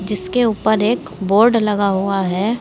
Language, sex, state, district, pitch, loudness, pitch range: Hindi, female, Uttar Pradesh, Saharanpur, 205 Hz, -16 LUFS, 195-225 Hz